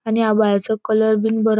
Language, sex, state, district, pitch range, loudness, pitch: Konkani, female, Goa, North and South Goa, 215-220 Hz, -17 LUFS, 220 Hz